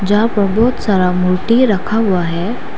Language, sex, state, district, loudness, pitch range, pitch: Hindi, female, Arunachal Pradesh, Lower Dibang Valley, -14 LUFS, 180-225 Hz, 205 Hz